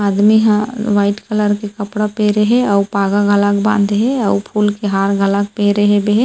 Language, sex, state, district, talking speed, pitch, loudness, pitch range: Chhattisgarhi, female, Chhattisgarh, Rajnandgaon, 200 wpm, 205 Hz, -14 LUFS, 200-210 Hz